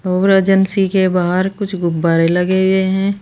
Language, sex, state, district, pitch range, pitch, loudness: Hindi, female, Uttar Pradesh, Saharanpur, 180-195 Hz, 190 Hz, -15 LUFS